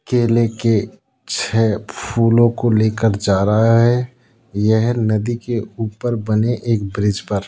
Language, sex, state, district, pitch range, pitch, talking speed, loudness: Hindi, male, Rajasthan, Jaipur, 105-120 Hz, 115 Hz, 135 wpm, -17 LUFS